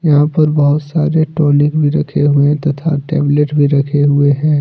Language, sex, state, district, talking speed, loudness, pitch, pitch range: Hindi, male, Jharkhand, Deoghar, 180 wpm, -13 LUFS, 150 Hz, 145-155 Hz